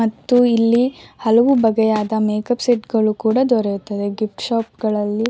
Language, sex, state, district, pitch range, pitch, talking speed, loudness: Kannada, female, Karnataka, Shimoga, 215-240 Hz, 225 Hz, 145 wpm, -17 LUFS